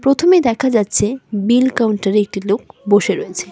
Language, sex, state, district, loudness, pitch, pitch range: Bengali, female, West Bengal, Cooch Behar, -16 LUFS, 220 Hz, 205-260 Hz